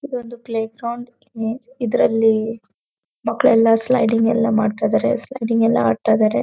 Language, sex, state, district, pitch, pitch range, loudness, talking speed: Kannada, female, Karnataka, Dharwad, 225 Hz, 220-240 Hz, -18 LUFS, 120 wpm